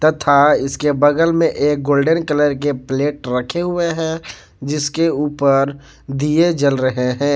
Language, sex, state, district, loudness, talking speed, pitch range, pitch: Hindi, male, Jharkhand, Garhwa, -16 LUFS, 145 wpm, 140-160 Hz, 145 Hz